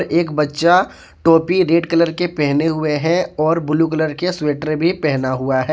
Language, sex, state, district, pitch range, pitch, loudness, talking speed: Hindi, male, Jharkhand, Ranchi, 150-170 Hz, 160 Hz, -17 LUFS, 190 wpm